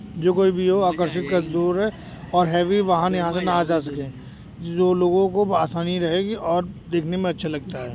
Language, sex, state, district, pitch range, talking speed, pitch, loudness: Hindi, male, Uttar Pradesh, Jyotiba Phule Nagar, 170-185 Hz, 210 wpm, 180 Hz, -21 LUFS